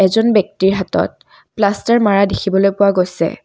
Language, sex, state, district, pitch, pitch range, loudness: Assamese, female, Assam, Kamrup Metropolitan, 200 Hz, 190-210 Hz, -15 LUFS